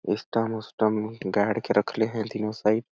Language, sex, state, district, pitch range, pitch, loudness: Awadhi, male, Chhattisgarh, Balrampur, 105-110 Hz, 110 Hz, -26 LUFS